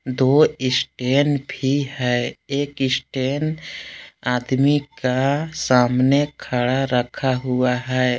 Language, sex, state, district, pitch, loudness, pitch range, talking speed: Hindi, male, Jharkhand, Palamu, 130 Hz, -20 LUFS, 125-140 Hz, 95 wpm